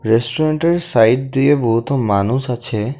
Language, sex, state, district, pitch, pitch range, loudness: Bengali, male, Assam, Kamrup Metropolitan, 125 Hz, 115-140 Hz, -16 LUFS